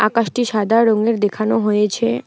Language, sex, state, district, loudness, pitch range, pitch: Bengali, female, West Bengal, Alipurduar, -17 LUFS, 210-230 Hz, 220 Hz